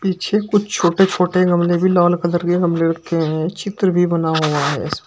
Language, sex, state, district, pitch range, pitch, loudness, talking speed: Hindi, male, Uttar Pradesh, Shamli, 165-185 Hz, 175 Hz, -17 LUFS, 215 wpm